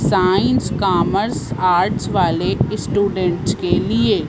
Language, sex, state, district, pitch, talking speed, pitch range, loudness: Hindi, female, Madhya Pradesh, Bhopal, 180 Hz, 100 wpm, 160-190 Hz, -18 LUFS